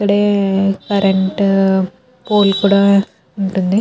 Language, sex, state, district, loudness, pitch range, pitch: Telugu, female, Andhra Pradesh, Krishna, -14 LUFS, 195-200 Hz, 195 Hz